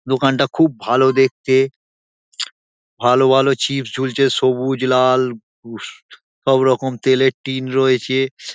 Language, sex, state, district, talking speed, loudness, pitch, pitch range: Bengali, male, West Bengal, Dakshin Dinajpur, 105 wpm, -17 LUFS, 130 Hz, 125-135 Hz